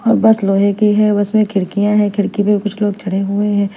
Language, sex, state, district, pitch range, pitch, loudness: Hindi, female, Punjab, Fazilka, 200-210 Hz, 205 Hz, -14 LUFS